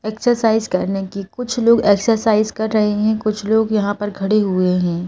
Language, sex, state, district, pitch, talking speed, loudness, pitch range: Hindi, female, Madhya Pradesh, Bhopal, 215 Hz, 190 wpm, -17 LUFS, 195-220 Hz